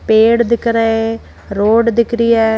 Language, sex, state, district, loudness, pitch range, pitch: Hindi, female, Madhya Pradesh, Bhopal, -13 LUFS, 220-235 Hz, 230 Hz